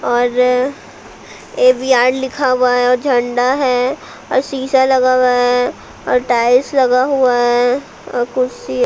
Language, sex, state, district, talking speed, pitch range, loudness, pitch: Hindi, female, Bihar, Patna, 140 wpm, 245-265 Hz, -14 LUFS, 255 Hz